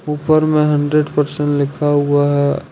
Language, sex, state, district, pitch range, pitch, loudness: Hindi, male, Jharkhand, Ranchi, 145-150 Hz, 145 Hz, -15 LUFS